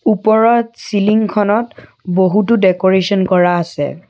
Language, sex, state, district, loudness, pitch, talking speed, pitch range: Assamese, female, Assam, Kamrup Metropolitan, -14 LUFS, 200 Hz, 90 wpm, 185-215 Hz